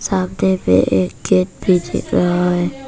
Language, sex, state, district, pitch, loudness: Hindi, female, Arunachal Pradesh, Papum Pare, 175 Hz, -16 LUFS